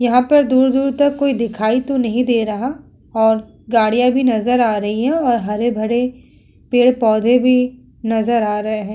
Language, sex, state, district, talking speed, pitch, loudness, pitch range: Hindi, female, Uttar Pradesh, Muzaffarnagar, 175 wpm, 240 Hz, -16 LUFS, 220-255 Hz